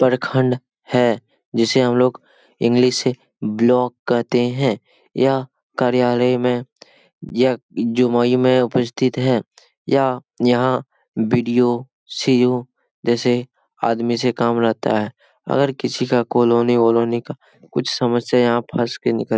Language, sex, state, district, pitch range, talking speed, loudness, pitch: Hindi, male, Bihar, Jamui, 120-130 Hz, 145 wpm, -19 LUFS, 125 Hz